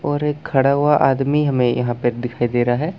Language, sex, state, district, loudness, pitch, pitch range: Hindi, male, Chhattisgarh, Bastar, -18 LUFS, 135 Hz, 120-145 Hz